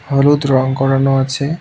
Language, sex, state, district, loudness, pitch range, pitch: Bengali, male, West Bengal, Cooch Behar, -14 LUFS, 135-140 Hz, 135 Hz